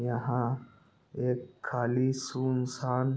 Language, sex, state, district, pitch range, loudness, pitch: Hindi, male, Chhattisgarh, Rajnandgaon, 125-130 Hz, -32 LUFS, 125 Hz